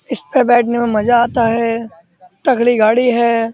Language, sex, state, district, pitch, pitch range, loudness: Hindi, male, Uttar Pradesh, Muzaffarnagar, 235 Hz, 225-240 Hz, -14 LUFS